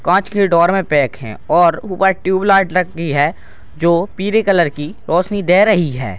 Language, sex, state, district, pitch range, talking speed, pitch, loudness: Hindi, male, Bihar, Purnia, 160-195 Hz, 195 wpm, 175 Hz, -15 LUFS